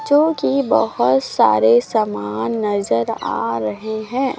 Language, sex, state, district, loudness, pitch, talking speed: Hindi, female, Chhattisgarh, Raipur, -18 LUFS, 210 Hz, 125 wpm